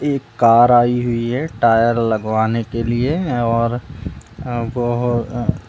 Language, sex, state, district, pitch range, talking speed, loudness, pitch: Hindi, male, Uttar Pradesh, Budaun, 115-125 Hz, 135 wpm, -17 LUFS, 120 Hz